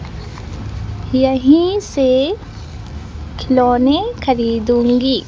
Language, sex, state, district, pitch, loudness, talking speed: Hindi, female, Madhya Pradesh, Bhopal, 250 Hz, -14 LUFS, 45 wpm